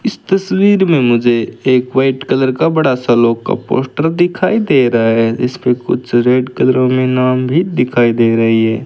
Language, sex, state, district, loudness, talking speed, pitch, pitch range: Hindi, male, Rajasthan, Bikaner, -13 LUFS, 185 wpm, 130 Hz, 120-160 Hz